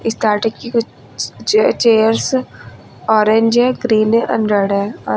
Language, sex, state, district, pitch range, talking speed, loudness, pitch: Hindi, female, Uttar Pradesh, Lucknow, 215-235 Hz, 160 wpm, -15 LUFS, 225 Hz